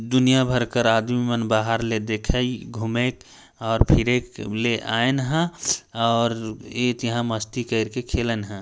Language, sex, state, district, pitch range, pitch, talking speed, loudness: Hindi, male, Chhattisgarh, Jashpur, 110-125 Hz, 115 Hz, 160 wpm, -23 LUFS